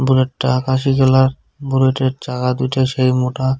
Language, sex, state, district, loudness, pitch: Bengali, male, West Bengal, Cooch Behar, -16 LUFS, 130 Hz